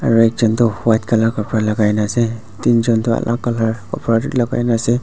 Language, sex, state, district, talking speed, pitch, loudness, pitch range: Nagamese, male, Nagaland, Dimapur, 180 wpm, 115 Hz, -17 LUFS, 110-120 Hz